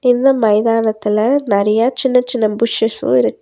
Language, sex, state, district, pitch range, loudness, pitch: Tamil, female, Tamil Nadu, Nilgiris, 215-250 Hz, -14 LUFS, 225 Hz